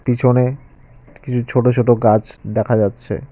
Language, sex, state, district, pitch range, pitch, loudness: Bengali, male, West Bengal, Cooch Behar, 110-125 Hz, 125 Hz, -16 LUFS